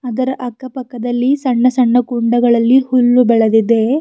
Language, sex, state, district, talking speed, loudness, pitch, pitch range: Kannada, female, Karnataka, Bidar, 105 wpm, -13 LUFS, 245 Hz, 240-255 Hz